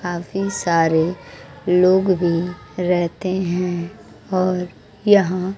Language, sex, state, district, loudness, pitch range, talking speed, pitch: Hindi, female, Bihar, West Champaran, -19 LUFS, 175-185 Hz, 85 wpm, 180 Hz